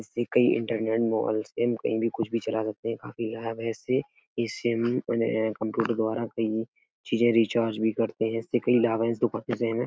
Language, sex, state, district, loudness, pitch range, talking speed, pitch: Hindi, male, Uttar Pradesh, Etah, -27 LUFS, 110-115 Hz, 225 wpm, 115 Hz